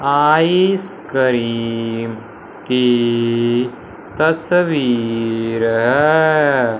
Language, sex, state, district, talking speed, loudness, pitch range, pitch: Hindi, male, Punjab, Fazilka, 35 wpm, -16 LUFS, 115-155 Hz, 125 Hz